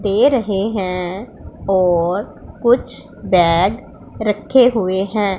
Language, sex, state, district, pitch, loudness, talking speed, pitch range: Hindi, female, Punjab, Pathankot, 200 Hz, -16 LUFS, 100 wpm, 185-220 Hz